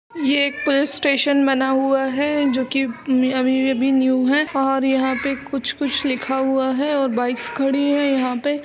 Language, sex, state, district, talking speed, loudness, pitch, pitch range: Hindi, female, Uttar Pradesh, Budaun, 195 wpm, -19 LUFS, 270 Hz, 265-285 Hz